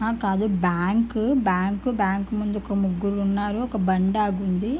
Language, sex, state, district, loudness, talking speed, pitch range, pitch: Telugu, female, Andhra Pradesh, Guntur, -23 LUFS, 165 wpm, 190-220 Hz, 200 Hz